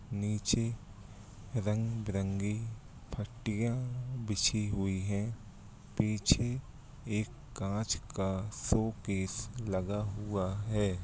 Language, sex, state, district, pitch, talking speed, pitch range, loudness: Hindi, male, Andhra Pradesh, Anantapur, 105 Hz, 75 wpm, 100-115 Hz, -35 LUFS